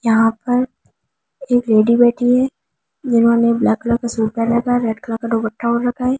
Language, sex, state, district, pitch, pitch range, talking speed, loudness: Hindi, female, Delhi, New Delhi, 235 Hz, 225-245 Hz, 205 wpm, -16 LUFS